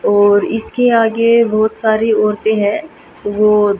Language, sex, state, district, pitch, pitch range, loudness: Hindi, female, Haryana, Jhajjar, 215 Hz, 210-230 Hz, -13 LUFS